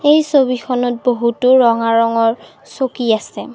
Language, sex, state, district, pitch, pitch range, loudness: Assamese, female, Assam, Kamrup Metropolitan, 245 Hz, 230-260 Hz, -15 LUFS